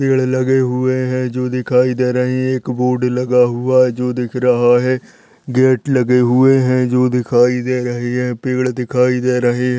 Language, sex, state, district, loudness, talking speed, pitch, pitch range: Hindi, male, Rajasthan, Nagaur, -15 LUFS, 195 wpm, 125 Hz, 125-130 Hz